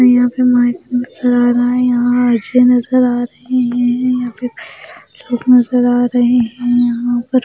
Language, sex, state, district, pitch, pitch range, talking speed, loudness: Hindi, female, Maharashtra, Mumbai Suburban, 245 Hz, 245-250 Hz, 170 wpm, -13 LUFS